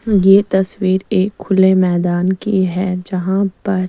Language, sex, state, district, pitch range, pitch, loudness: Hindi, female, Chandigarh, Chandigarh, 185-195 Hz, 190 Hz, -15 LUFS